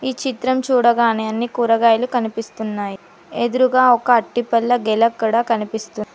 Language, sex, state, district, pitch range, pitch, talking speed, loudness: Telugu, female, Telangana, Mahabubabad, 220-245 Hz, 235 Hz, 115 wpm, -17 LUFS